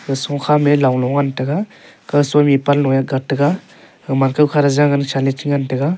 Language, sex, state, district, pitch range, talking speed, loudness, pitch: Wancho, male, Arunachal Pradesh, Longding, 135-145 Hz, 130 wpm, -16 LUFS, 140 Hz